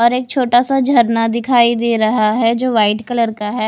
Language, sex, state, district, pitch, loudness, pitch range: Hindi, female, Odisha, Khordha, 235 Hz, -14 LUFS, 220-245 Hz